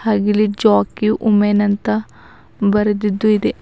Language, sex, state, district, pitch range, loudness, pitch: Kannada, female, Karnataka, Bidar, 195-215 Hz, -16 LUFS, 205 Hz